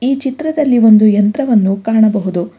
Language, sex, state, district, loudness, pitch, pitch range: Kannada, female, Karnataka, Bangalore, -12 LUFS, 220 Hz, 205-265 Hz